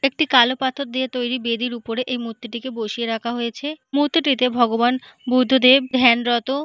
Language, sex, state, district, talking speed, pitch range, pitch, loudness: Bengali, female, West Bengal, Paschim Medinipur, 145 wpm, 235-265 Hz, 250 Hz, -19 LUFS